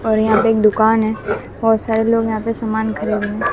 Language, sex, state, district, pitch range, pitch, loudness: Hindi, female, Bihar, West Champaran, 220-225 Hz, 220 Hz, -17 LUFS